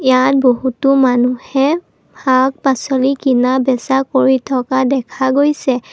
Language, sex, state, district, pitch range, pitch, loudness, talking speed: Assamese, female, Assam, Kamrup Metropolitan, 255-270 Hz, 265 Hz, -14 LUFS, 110 wpm